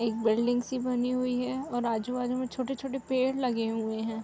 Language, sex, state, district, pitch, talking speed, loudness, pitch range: Hindi, female, Uttar Pradesh, Hamirpur, 250 Hz, 210 wpm, -30 LUFS, 230-255 Hz